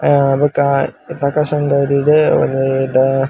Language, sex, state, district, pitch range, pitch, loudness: Tulu, male, Karnataka, Dakshina Kannada, 135-145 Hz, 140 Hz, -14 LUFS